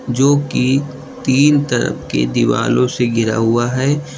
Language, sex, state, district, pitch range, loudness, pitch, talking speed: Hindi, male, Uttar Pradesh, Lucknow, 120-140 Hz, -15 LUFS, 130 Hz, 130 wpm